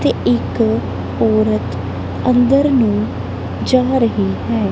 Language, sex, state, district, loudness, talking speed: Punjabi, female, Punjab, Kapurthala, -16 LUFS, 100 wpm